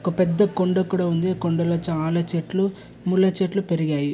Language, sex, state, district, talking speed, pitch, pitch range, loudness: Telugu, male, Andhra Pradesh, Chittoor, 175 wpm, 180 Hz, 170-190 Hz, -22 LUFS